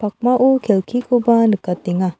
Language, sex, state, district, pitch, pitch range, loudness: Garo, female, Meghalaya, South Garo Hills, 225 Hz, 185-245 Hz, -16 LUFS